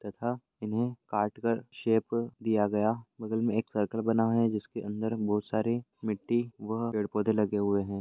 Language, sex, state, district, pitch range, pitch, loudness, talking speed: Hindi, male, Chhattisgarh, Raigarh, 105-115 Hz, 110 Hz, -31 LUFS, 170 wpm